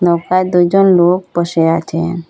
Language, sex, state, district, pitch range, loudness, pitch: Bengali, female, Assam, Hailakandi, 165-185 Hz, -13 LUFS, 175 Hz